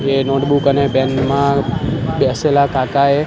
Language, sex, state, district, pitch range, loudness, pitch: Gujarati, male, Gujarat, Gandhinagar, 135-140 Hz, -15 LUFS, 140 Hz